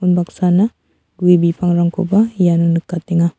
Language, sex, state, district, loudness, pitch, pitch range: Garo, female, Meghalaya, South Garo Hills, -15 LUFS, 175 Hz, 170-180 Hz